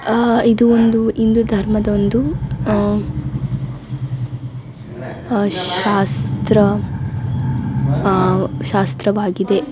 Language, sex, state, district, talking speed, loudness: Kannada, female, Karnataka, Dakshina Kannada, 70 wpm, -17 LUFS